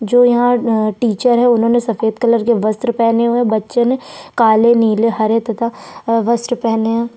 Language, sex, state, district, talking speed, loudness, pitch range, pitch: Hindi, female, Chhattisgarh, Sukma, 165 wpm, -14 LUFS, 225-240 Hz, 230 Hz